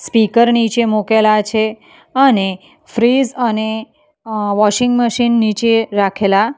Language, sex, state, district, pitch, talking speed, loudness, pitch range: Gujarati, female, Gujarat, Valsad, 225 Hz, 110 wpm, -14 LUFS, 215-240 Hz